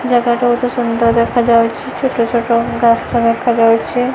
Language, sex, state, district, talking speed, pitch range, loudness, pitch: Odia, female, Odisha, Khordha, 115 wpm, 230-245 Hz, -14 LUFS, 235 Hz